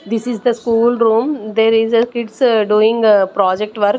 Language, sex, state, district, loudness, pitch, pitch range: English, female, Chandigarh, Chandigarh, -14 LUFS, 225 Hz, 215-235 Hz